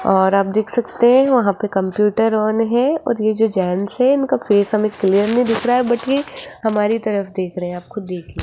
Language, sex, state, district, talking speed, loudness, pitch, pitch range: Hindi, female, Rajasthan, Jaipur, 235 wpm, -17 LUFS, 215 Hz, 200-240 Hz